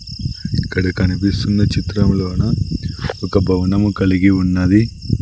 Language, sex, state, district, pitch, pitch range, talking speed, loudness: Telugu, male, Andhra Pradesh, Sri Satya Sai, 95 Hz, 90-105 Hz, 80 wpm, -17 LUFS